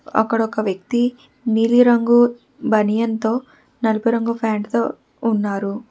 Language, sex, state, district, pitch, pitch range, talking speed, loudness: Telugu, female, Telangana, Hyderabad, 230 Hz, 220-240 Hz, 110 wpm, -19 LUFS